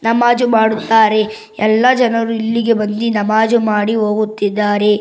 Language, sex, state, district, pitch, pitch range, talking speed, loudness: Kannada, female, Karnataka, Bangalore, 220 Hz, 215-230 Hz, 110 wpm, -14 LUFS